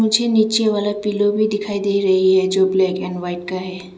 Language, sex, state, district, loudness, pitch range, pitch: Hindi, female, Arunachal Pradesh, Lower Dibang Valley, -18 LUFS, 185-210 Hz, 200 Hz